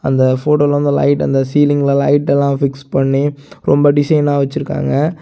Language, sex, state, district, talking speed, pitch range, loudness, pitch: Tamil, male, Tamil Nadu, Kanyakumari, 150 wpm, 140-145 Hz, -14 LUFS, 145 Hz